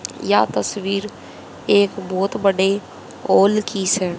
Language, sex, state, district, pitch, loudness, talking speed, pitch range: Hindi, female, Haryana, Charkhi Dadri, 195 Hz, -19 LUFS, 85 wpm, 190-205 Hz